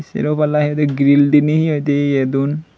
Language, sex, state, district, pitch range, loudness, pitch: Chakma, male, Tripura, Unakoti, 140-150 Hz, -15 LUFS, 145 Hz